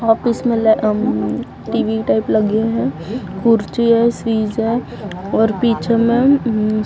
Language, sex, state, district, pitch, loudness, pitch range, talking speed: Hindi, female, Maharashtra, Gondia, 225 Hz, -16 LUFS, 215-235 Hz, 150 wpm